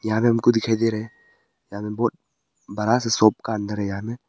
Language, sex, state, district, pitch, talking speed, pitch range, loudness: Hindi, male, Arunachal Pradesh, Papum Pare, 110 Hz, 250 wpm, 105-115 Hz, -22 LUFS